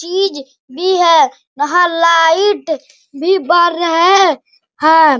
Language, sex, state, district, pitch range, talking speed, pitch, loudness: Hindi, male, Bihar, Bhagalpur, 315-365 Hz, 105 wpm, 335 Hz, -12 LUFS